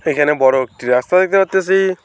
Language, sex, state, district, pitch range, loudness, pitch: Bengali, male, West Bengal, Alipurduar, 130-190 Hz, -14 LUFS, 165 Hz